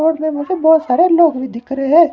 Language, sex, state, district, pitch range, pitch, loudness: Hindi, male, Himachal Pradesh, Shimla, 275-335 Hz, 315 Hz, -14 LUFS